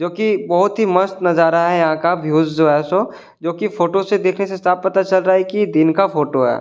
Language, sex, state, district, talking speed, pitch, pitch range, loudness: Hindi, male, Delhi, New Delhi, 245 wpm, 180 Hz, 165-195 Hz, -16 LUFS